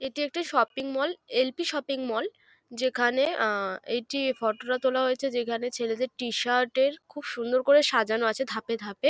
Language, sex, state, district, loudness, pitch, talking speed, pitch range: Bengali, female, West Bengal, North 24 Parganas, -27 LUFS, 255 Hz, 165 wpm, 235-275 Hz